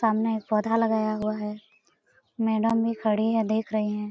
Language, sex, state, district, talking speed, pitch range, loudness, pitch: Hindi, female, Bihar, Lakhisarai, 190 wpm, 215-225 Hz, -26 LUFS, 220 Hz